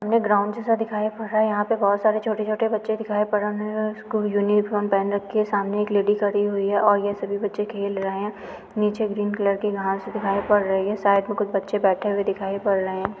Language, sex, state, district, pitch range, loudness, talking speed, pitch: Hindi, female, Uttar Pradesh, Budaun, 200-215 Hz, -23 LUFS, 245 wpm, 205 Hz